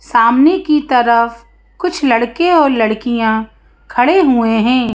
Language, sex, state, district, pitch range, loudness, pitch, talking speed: Hindi, female, Madhya Pradesh, Bhopal, 230-300 Hz, -13 LUFS, 245 Hz, 120 wpm